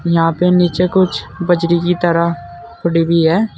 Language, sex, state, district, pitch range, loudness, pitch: Hindi, male, Uttar Pradesh, Saharanpur, 170-180 Hz, -14 LUFS, 170 Hz